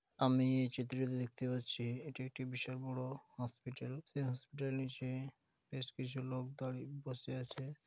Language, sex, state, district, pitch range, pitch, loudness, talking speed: Bengali, male, West Bengal, Dakshin Dinajpur, 125-135 Hz, 130 Hz, -42 LUFS, 160 wpm